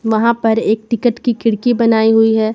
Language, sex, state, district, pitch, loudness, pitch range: Hindi, female, Jharkhand, Garhwa, 225 Hz, -14 LUFS, 220-235 Hz